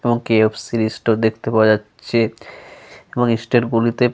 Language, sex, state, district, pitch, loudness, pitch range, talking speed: Bengali, male, Jharkhand, Sahebganj, 115 Hz, -18 LUFS, 110-120 Hz, 145 wpm